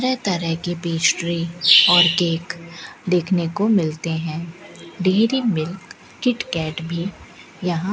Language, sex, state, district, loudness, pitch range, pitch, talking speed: Hindi, female, Rajasthan, Bikaner, -19 LUFS, 165-190 Hz, 175 Hz, 130 wpm